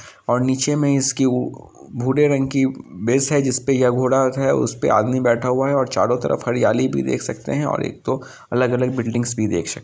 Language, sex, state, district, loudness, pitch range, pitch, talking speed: Hindi, male, Bihar, Samastipur, -19 LUFS, 120-135 Hz, 130 Hz, 230 wpm